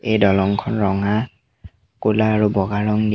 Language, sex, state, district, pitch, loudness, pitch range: Assamese, male, Assam, Sonitpur, 105 Hz, -19 LUFS, 100-110 Hz